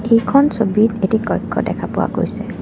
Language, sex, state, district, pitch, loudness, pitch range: Assamese, female, Assam, Kamrup Metropolitan, 220 Hz, -16 LUFS, 215-230 Hz